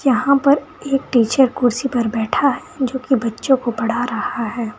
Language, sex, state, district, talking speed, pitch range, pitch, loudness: Hindi, female, Uttar Pradesh, Saharanpur, 190 wpm, 235-275 Hz, 255 Hz, -18 LUFS